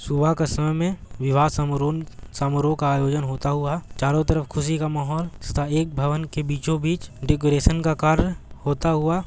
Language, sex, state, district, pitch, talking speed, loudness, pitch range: Hindi, male, Bihar, Gaya, 150 Hz, 175 wpm, -23 LUFS, 145-160 Hz